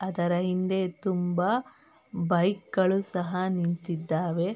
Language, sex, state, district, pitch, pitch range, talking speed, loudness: Kannada, female, Karnataka, Mysore, 180 Hz, 175-190 Hz, 90 wpm, -28 LUFS